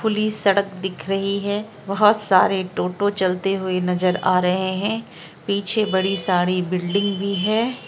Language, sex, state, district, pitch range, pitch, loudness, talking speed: Hindi, female, Bihar, Araria, 185-205 Hz, 195 Hz, -21 LUFS, 160 wpm